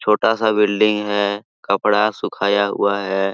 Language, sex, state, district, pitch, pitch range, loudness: Hindi, male, Jharkhand, Sahebganj, 105 Hz, 100-105 Hz, -18 LUFS